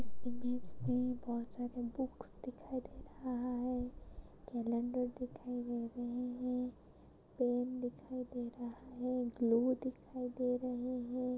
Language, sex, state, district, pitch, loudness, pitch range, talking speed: Hindi, female, Maharashtra, Sindhudurg, 250 Hz, -40 LUFS, 245-250 Hz, 130 wpm